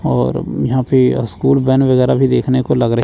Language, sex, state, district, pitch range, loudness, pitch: Hindi, male, Chandigarh, Chandigarh, 125-130 Hz, -14 LUFS, 130 Hz